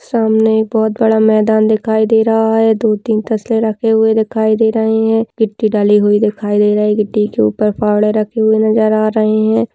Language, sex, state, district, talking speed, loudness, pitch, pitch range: Hindi, female, Rajasthan, Nagaur, 215 wpm, -13 LUFS, 220 Hz, 215-220 Hz